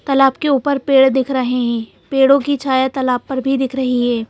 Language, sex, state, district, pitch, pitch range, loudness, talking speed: Hindi, female, Madhya Pradesh, Bhopal, 265 Hz, 255-275 Hz, -16 LUFS, 225 wpm